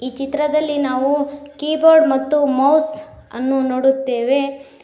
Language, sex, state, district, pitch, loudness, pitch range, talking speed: Kannada, female, Karnataka, Koppal, 280 Hz, -17 LUFS, 265-300 Hz, 85 wpm